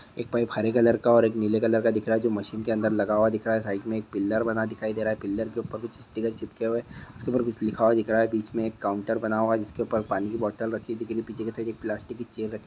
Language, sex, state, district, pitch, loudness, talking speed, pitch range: Hindi, male, Andhra Pradesh, Guntur, 110 Hz, -27 LUFS, 325 wpm, 110-115 Hz